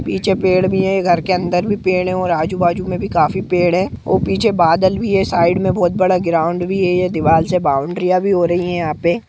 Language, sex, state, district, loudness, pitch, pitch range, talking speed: Hindi, female, Jharkhand, Jamtara, -16 LUFS, 180 Hz, 175-185 Hz, 230 wpm